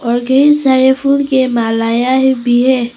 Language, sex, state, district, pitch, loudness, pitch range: Hindi, female, Arunachal Pradesh, Papum Pare, 260 Hz, -11 LUFS, 240-265 Hz